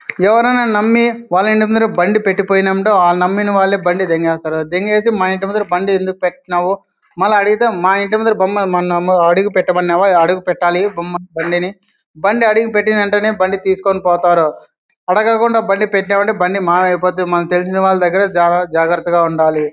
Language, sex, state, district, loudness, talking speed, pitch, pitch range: Telugu, male, Andhra Pradesh, Anantapur, -14 LUFS, 130 wpm, 190 Hz, 175-205 Hz